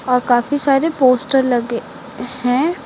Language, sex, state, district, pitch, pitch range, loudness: Hindi, female, Uttar Pradesh, Lucknow, 255 Hz, 245-280 Hz, -16 LUFS